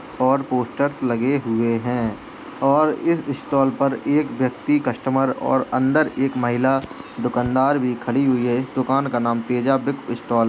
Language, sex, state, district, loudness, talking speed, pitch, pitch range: Hindi, female, Uttar Pradesh, Jalaun, -21 LUFS, 165 wpm, 130 Hz, 125-140 Hz